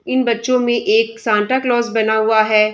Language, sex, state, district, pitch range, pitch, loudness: Hindi, female, Uttar Pradesh, Budaun, 220-245 Hz, 225 Hz, -16 LUFS